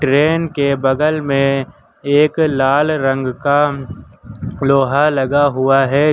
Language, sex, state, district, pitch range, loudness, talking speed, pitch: Hindi, male, Uttar Pradesh, Lucknow, 135-150 Hz, -15 LUFS, 115 wpm, 140 Hz